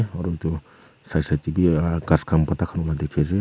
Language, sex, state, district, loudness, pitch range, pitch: Nagamese, female, Nagaland, Kohima, -23 LUFS, 80-90 Hz, 80 Hz